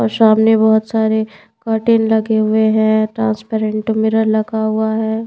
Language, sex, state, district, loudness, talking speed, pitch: Hindi, female, Bihar, Patna, -15 LUFS, 150 wpm, 220 Hz